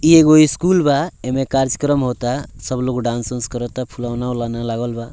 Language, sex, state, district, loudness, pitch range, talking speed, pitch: Bhojpuri, male, Bihar, Muzaffarpur, -18 LUFS, 120-145 Hz, 175 wpm, 125 Hz